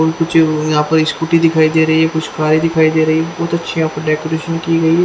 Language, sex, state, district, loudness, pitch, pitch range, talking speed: Hindi, female, Haryana, Charkhi Dadri, -14 LUFS, 160 Hz, 155-165 Hz, 275 wpm